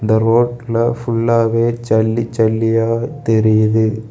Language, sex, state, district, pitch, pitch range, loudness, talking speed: Tamil, male, Tamil Nadu, Kanyakumari, 115 Hz, 110-115 Hz, -15 LUFS, 75 wpm